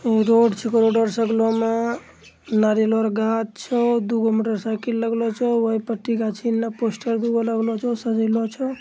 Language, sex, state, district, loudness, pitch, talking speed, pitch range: Angika, male, Bihar, Bhagalpur, -21 LUFS, 225 Hz, 175 wpm, 225-230 Hz